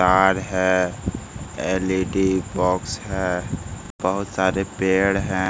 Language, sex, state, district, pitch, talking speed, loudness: Hindi, male, Bihar, Jamui, 95 Hz, 100 wpm, -22 LUFS